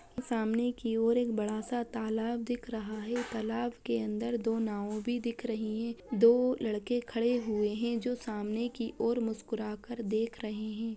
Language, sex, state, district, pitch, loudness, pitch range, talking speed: Bajjika, female, Bihar, Vaishali, 230 Hz, -33 LUFS, 220-240 Hz, 195 wpm